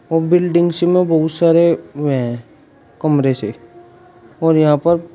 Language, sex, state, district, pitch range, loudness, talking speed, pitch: Hindi, male, Uttar Pradesh, Shamli, 125-170 Hz, -15 LUFS, 130 wpm, 155 Hz